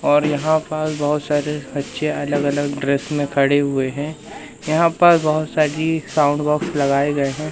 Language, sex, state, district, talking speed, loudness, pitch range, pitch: Hindi, male, Madhya Pradesh, Katni, 175 wpm, -19 LUFS, 145-155 Hz, 150 Hz